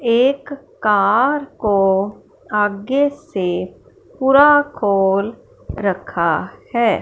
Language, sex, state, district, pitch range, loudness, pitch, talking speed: Hindi, female, Punjab, Fazilka, 200-285 Hz, -17 LUFS, 235 Hz, 75 wpm